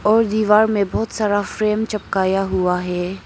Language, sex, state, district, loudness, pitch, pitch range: Hindi, female, Arunachal Pradesh, Papum Pare, -19 LUFS, 205 Hz, 190-215 Hz